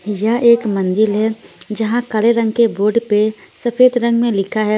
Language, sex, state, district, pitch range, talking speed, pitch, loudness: Hindi, female, Punjab, Fazilka, 210-235 Hz, 190 wpm, 220 Hz, -15 LUFS